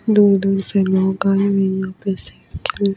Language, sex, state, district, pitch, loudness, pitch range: Hindi, female, Delhi, New Delhi, 195 Hz, -18 LUFS, 190-200 Hz